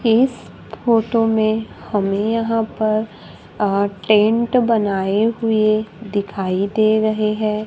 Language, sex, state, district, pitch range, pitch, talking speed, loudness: Hindi, female, Maharashtra, Gondia, 205-225 Hz, 215 Hz, 110 wpm, -18 LUFS